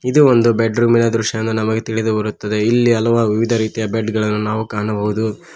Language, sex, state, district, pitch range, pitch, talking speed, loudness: Kannada, male, Karnataka, Koppal, 110-115 Hz, 110 Hz, 160 wpm, -16 LUFS